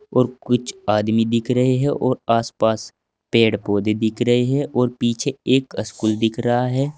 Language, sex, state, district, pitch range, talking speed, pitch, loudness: Hindi, male, Uttar Pradesh, Saharanpur, 110-125 Hz, 170 wpm, 120 Hz, -20 LUFS